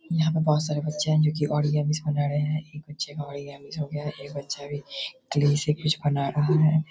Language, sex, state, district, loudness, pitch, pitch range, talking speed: Hindi, male, Bihar, Darbhanga, -26 LUFS, 150 Hz, 145-155 Hz, 215 wpm